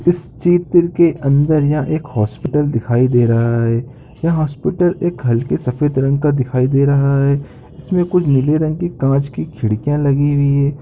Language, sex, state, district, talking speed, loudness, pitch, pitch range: Hindi, male, Chhattisgarh, Rajnandgaon, 190 wpm, -16 LUFS, 140 Hz, 130-155 Hz